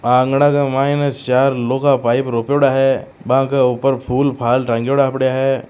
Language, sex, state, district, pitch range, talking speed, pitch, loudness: Marwari, male, Rajasthan, Churu, 125-135 Hz, 170 wpm, 135 Hz, -16 LUFS